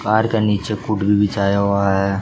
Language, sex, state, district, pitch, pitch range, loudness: Hindi, male, Jharkhand, Jamtara, 100 Hz, 100-110 Hz, -18 LUFS